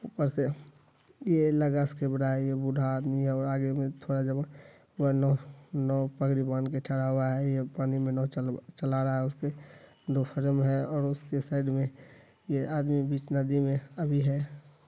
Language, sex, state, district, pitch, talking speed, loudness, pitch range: Hindi, male, Bihar, Saharsa, 140 Hz, 180 wpm, -30 LUFS, 135-145 Hz